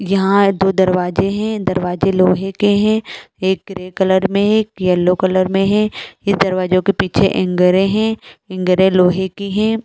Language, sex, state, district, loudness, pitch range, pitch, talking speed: Hindi, female, Chhattisgarh, Balrampur, -15 LUFS, 185-200 Hz, 190 Hz, 175 wpm